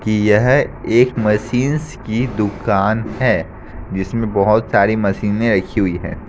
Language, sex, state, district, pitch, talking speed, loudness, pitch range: Hindi, male, Bihar, Katihar, 110 Hz, 135 wpm, -17 LUFS, 100-115 Hz